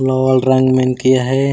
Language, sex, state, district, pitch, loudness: Chhattisgarhi, male, Chhattisgarh, Raigarh, 130 Hz, -13 LUFS